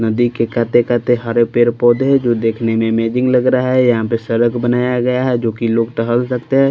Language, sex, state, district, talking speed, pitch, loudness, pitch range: Hindi, male, Maharashtra, Washim, 235 wpm, 120 Hz, -15 LUFS, 115-125 Hz